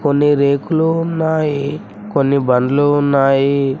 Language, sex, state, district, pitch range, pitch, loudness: Telugu, male, Telangana, Mahabubabad, 140-160 Hz, 145 Hz, -15 LUFS